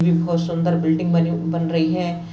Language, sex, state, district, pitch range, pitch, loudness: Hindi, female, Chhattisgarh, Bastar, 165-170 Hz, 170 Hz, -20 LUFS